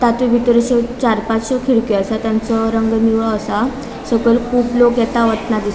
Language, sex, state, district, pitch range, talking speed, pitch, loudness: Konkani, female, Goa, North and South Goa, 225-240 Hz, 175 wpm, 230 Hz, -15 LUFS